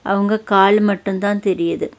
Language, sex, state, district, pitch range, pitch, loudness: Tamil, female, Tamil Nadu, Nilgiris, 195-205 Hz, 200 Hz, -16 LUFS